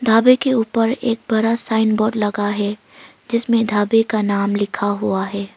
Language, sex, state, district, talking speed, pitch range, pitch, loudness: Hindi, female, Arunachal Pradesh, Longding, 170 wpm, 205-230 Hz, 220 Hz, -18 LUFS